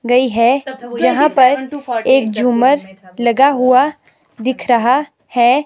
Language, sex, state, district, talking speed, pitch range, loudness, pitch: Hindi, female, Himachal Pradesh, Shimla, 115 wpm, 240-270 Hz, -14 LUFS, 255 Hz